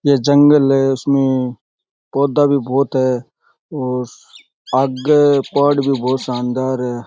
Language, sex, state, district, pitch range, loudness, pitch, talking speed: Rajasthani, male, Rajasthan, Churu, 130-140 Hz, -16 LUFS, 135 Hz, 125 wpm